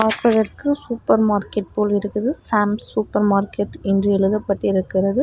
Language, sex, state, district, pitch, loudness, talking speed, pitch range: Tamil, female, Tamil Nadu, Namakkal, 210 Hz, -20 LUFS, 90 wpm, 200-220 Hz